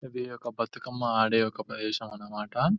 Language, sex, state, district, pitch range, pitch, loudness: Telugu, male, Telangana, Nalgonda, 110-125 Hz, 115 Hz, -30 LUFS